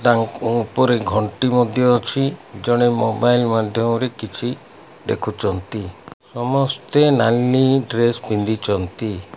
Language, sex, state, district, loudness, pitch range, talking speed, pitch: Odia, male, Odisha, Malkangiri, -19 LUFS, 110-125 Hz, 100 wpm, 120 Hz